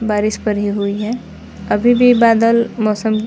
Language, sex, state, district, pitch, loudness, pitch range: Hindi, male, Bihar, West Champaran, 215 Hz, -15 LUFS, 210-230 Hz